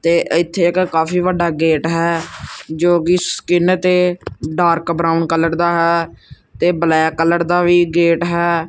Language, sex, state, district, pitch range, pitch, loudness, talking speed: Punjabi, male, Punjab, Kapurthala, 165-175 Hz, 170 Hz, -15 LUFS, 160 wpm